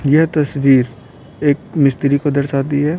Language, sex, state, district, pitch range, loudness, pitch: Hindi, male, Bihar, Patna, 135-150 Hz, -15 LUFS, 140 Hz